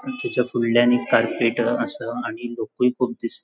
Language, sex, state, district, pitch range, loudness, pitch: Konkani, male, Goa, North and South Goa, 120-125 Hz, -22 LUFS, 120 Hz